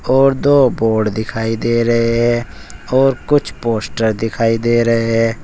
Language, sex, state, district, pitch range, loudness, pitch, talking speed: Hindi, male, Uttar Pradesh, Saharanpur, 110-120 Hz, -15 LUFS, 115 Hz, 155 wpm